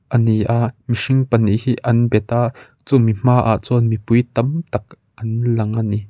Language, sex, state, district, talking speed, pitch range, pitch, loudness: Mizo, male, Mizoram, Aizawl, 185 wpm, 110-125 Hz, 115 Hz, -17 LUFS